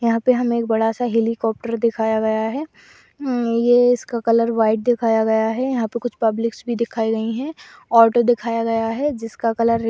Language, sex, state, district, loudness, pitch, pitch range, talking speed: Hindi, female, Uttar Pradesh, Budaun, -19 LUFS, 230 Hz, 225-240 Hz, 200 wpm